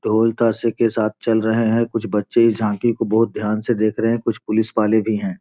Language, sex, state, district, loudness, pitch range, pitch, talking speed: Hindi, male, Bihar, Gopalganj, -19 LUFS, 110-115 Hz, 110 Hz, 245 wpm